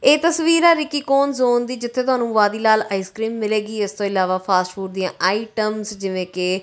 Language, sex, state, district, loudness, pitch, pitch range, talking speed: Punjabi, female, Punjab, Kapurthala, -19 LUFS, 215 Hz, 195-250 Hz, 180 wpm